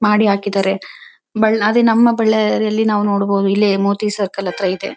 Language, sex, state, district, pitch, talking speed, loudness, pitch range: Kannada, female, Karnataka, Bellary, 210 Hz, 180 wpm, -16 LUFS, 200-220 Hz